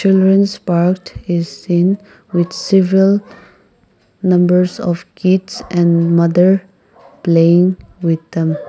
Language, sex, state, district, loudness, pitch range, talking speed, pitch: English, female, Nagaland, Kohima, -14 LUFS, 170-190 Hz, 95 wpm, 180 Hz